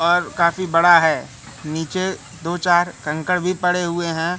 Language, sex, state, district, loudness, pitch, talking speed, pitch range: Hindi, male, Madhya Pradesh, Katni, -19 LUFS, 170 Hz, 165 wpm, 160-180 Hz